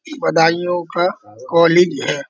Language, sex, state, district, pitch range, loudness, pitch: Hindi, male, Uttar Pradesh, Budaun, 170-180 Hz, -16 LUFS, 175 Hz